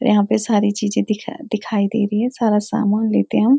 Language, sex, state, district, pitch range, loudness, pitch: Hindi, female, Uttarakhand, Uttarkashi, 210-230 Hz, -18 LUFS, 215 Hz